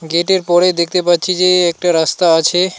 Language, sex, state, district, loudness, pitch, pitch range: Bengali, male, West Bengal, Alipurduar, -13 LUFS, 175 Hz, 170-180 Hz